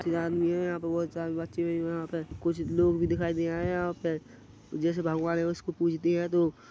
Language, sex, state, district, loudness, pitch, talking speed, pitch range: Hindi, male, Chhattisgarh, Rajnandgaon, -30 LUFS, 170 Hz, 215 wpm, 165-170 Hz